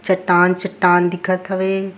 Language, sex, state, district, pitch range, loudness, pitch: Surgujia, female, Chhattisgarh, Sarguja, 180-190 Hz, -16 LUFS, 185 Hz